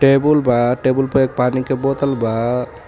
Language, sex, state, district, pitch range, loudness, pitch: Bhojpuri, male, Jharkhand, Palamu, 125-135 Hz, -17 LUFS, 130 Hz